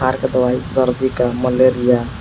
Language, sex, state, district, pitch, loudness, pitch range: Hindi, male, Jharkhand, Palamu, 125 Hz, -16 LUFS, 125-130 Hz